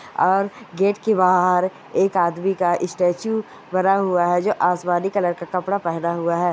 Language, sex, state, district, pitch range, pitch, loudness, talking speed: Hindi, female, Goa, North and South Goa, 175-195 Hz, 180 Hz, -20 LUFS, 175 wpm